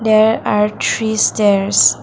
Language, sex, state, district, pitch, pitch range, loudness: English, female, Assam, Kamrup Metropolitan, 210 Hz, 195-220 Hz, -14 LUFS